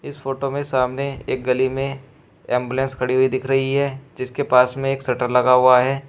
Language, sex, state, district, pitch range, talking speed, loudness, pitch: Hindi, male, Uttar Pradesh, Shamli, 125-135 Hz, 205 wpm, -20 LUFS, 130 Hz